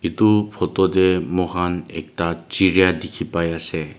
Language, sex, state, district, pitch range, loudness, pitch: Nagamese, male, Nagaland, Dimapur, 85-95 Hz, -20 LUFS, 90 Hz